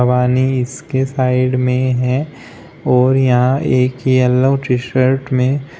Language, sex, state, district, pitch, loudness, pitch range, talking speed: Hindi, male, Uttar Pradesh, Shamli, 130 Hz, -15 LUFS, 125-135 Hz, 125 wpm